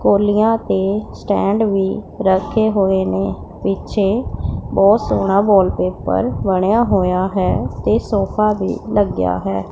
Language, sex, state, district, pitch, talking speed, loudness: Punjabi, female, Punjab, Pathankot, 195 Hz, 115 wpm, -17 LUFS